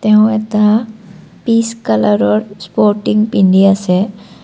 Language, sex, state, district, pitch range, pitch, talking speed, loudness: Assamese, female, Assam, Kamrup Metropolitan, 185-215 Hz, 210 Hz, 95 wpm, -13 LUFS